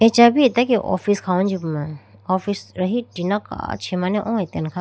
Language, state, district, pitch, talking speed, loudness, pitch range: Idu Mishmi, Arunachal Pradesh, Lower Dibang Valley, 195 Hz, 160 wpm, -20 LUFS, 180-225 Hz